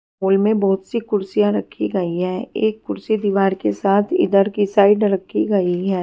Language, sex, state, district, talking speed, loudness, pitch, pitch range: Hindi, female, Punjab, Fazilka, 190 wpm, -18 LUFS, 200 Hz, 190-210 Hz